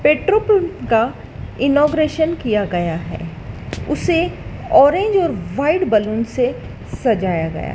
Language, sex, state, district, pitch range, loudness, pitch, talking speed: Hindi, female, Madhya Pradesh, Dhar, 215-335 Hz, -17 LUFS, 280 Hz, 125 wpm